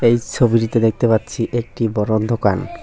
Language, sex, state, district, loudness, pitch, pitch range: Bengali, male, West Bengal, Cooch Behar, -18 LUFS, 115 Hz, 110-120 Hz